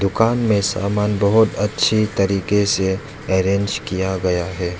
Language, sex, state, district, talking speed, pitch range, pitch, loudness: Hindi, male, Arunachal Pradesh, Lower Dibang Valley, 140 wpm, 95-105 Hz, 100 Hz, -18 LUFS